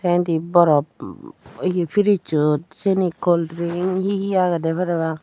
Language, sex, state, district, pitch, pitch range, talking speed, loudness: Chakma, female, Tripura, Dhalai, 175 Hz, 165-185 Hz, 125 wpm, -20 LUFS